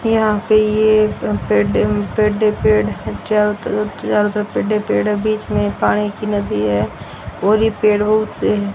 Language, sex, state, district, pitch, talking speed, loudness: Hindi, female, Haryana, Rohtak, 210 Hz, 180 wpm, -17 LUFS